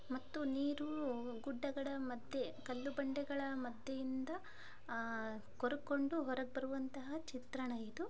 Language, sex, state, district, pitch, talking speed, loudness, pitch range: Kannada, female, Karnataka, Dharwad, 270 Hz, 95 wpm, -43 LUFS, 255-285 Hz